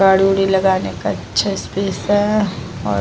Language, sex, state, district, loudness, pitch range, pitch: Hindi, female, Bihar, Vaishali, -17 LUFS, 185-195 Hz, 195 Hz